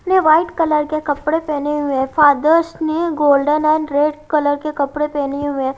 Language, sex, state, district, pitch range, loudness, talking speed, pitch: Hindi, female, Haryana, Jhajjar, 290-315 Hz, -16 LUFS, 195 wpm, 300 Hz